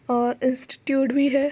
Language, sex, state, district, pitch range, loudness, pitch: Hindi, female, Uttar Pradesh, Budaun, 255-280 Hz, -23 LUFS, 270 Hz